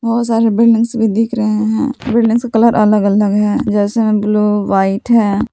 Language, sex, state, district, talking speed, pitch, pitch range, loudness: Hindi, female, Jharkhand, Palamu, 195 wpm, 220 Hz, 210-230 Hz, -13 LUFS